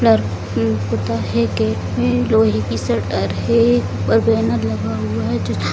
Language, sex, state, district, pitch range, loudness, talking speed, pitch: Hindi, female, Bihar, Jamui, 105-115 Hz, -18 LUFS, 135 wpm, 110 Hz